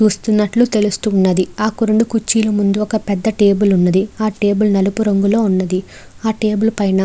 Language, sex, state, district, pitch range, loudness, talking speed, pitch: Telugu, female, Andhra Pradesh, Chittoor, 195-220 Hz, -15 LUFS, 160 wpm, 210 Hz